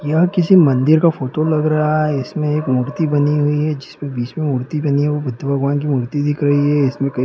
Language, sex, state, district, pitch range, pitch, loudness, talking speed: Hindi, male, Bihar, East Champaran, 140-155 Hz, 145 Hz, -17 LUFS, 255 wpm